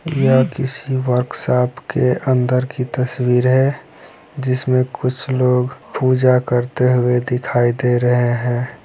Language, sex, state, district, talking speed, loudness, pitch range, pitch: Hindi, male, Bihar, East Champaran, 130 wpm, -17 LUFS, 125-130 Hz, 125 Hz